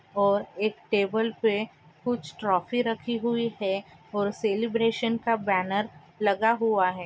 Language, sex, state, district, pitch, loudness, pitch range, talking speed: Hindi, female, Andhra Pradesh, Anantapur, 215 Hz, -27 LUFS, 200-230 Hz, 135 wpm